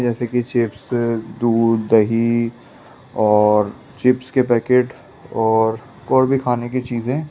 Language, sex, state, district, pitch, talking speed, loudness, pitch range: Hindi, male, Delhi, New Delhi, 120 Hz, 125 wpm, -18 LUFS, 115-125 Hz